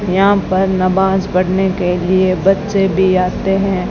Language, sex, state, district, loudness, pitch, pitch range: Hindi, female, Rajasthan, Bikaner, -14 LUFS, 190 Hz, 185-195 Hz